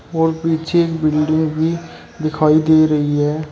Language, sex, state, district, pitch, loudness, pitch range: Hindi, male, Uttar Pradesh, Shamli, 155 Hz, -16 LUFS, 155-160 Hz